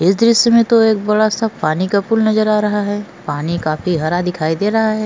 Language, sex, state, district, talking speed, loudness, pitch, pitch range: Hindi, female, Goa, North and South Goa, 235 wpm, -15 LUFS, 205 Hz, 175-220 Hz